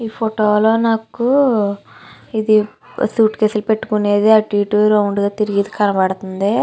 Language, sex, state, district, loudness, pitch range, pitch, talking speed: Telugu, female, Andhra Pradesh, Chittoor, -16 LUFS, 205-220 Hz, 215 Hz, 135 wpm